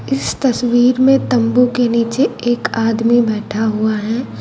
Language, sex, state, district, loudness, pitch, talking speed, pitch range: Hindi, female, Uttar Pradesh, Lucknow, -15 LUFS, 240 Hz, 150 wpm, 225-250 Hz